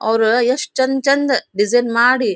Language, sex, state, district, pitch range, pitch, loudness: Kannada, female, Karnataka, Dharwad, 235-275 Hz, 250 Hz, -16 LUFS